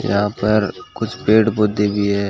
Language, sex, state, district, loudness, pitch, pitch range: Hindi, male, Rajasthan, Bikaner, -18 LUFS, 105 Hz, 100-110 Hz